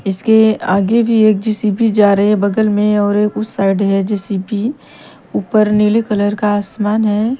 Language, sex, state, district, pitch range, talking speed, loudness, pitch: Hindi, female, Haryana, Charkhi Dadri, 205-220 Hz, 205 wpm, -14 LUFS, 210 Hz